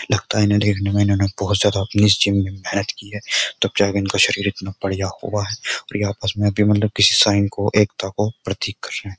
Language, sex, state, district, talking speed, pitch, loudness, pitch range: Hindi, male, Uttar Pradesh, Jyotiba Phule Nagar, 210 wpm, 100 Hz, -19 LUFS, 100-105 Hz